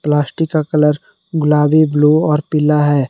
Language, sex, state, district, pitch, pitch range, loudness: Hindi, male, Jharkhand, Palamu, 150 Hz, 150-155 Hz, -14 LUFS